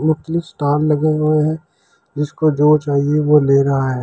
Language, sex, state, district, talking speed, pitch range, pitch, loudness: Hindi, male, Delhi, New Delhi, 180 wpm, 145-155 Hz, 150 Hz, -16 LUFS